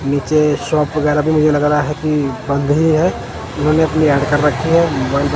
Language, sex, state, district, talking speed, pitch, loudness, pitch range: Hindi, male, Punjab, Kapurthala, 210 wpm, 150 Hz, -15 LUFS, 145-155 Hz